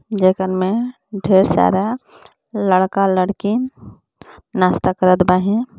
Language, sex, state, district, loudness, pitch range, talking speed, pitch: Bhojpuri, female, Jharkhand, Palamu, -17 LUFS, 185-215 Hz, 85 wpm, 195 Hz